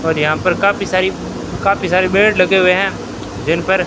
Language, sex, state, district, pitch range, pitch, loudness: Hindi, male, Rajasthan, Bikaner, 155-195 Hz, 185 Hz, -14 LUFS